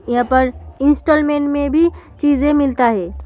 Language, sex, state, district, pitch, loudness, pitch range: Hindi, female, Bihar, Samastipur, 285 Hz, -16 LUFS, 250-295 Hz